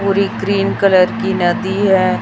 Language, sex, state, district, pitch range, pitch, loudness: Hindi, female, Chhattisgarh, Raipur, 185-200 Hz, 195 Hz, -14 LUFS